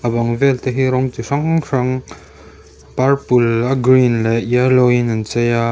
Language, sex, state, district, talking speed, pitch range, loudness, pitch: Mizo, male, Mizoram, Aizawl, 200 wpm, 115-130 Hz, -16 LUFS, 125 Hz